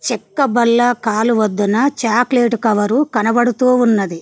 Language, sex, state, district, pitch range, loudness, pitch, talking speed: Telugu, female, Telangana, Mahabubabad, 215-245 Hz, -15 LUFS, 235 Hz, 100 wpm